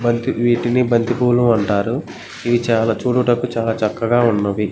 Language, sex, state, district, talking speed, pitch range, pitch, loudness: Telugu, male, Andhra Pradesh, Guntur, 125 wpm, 115-120 Hz, 120 Hz, -17 LUFS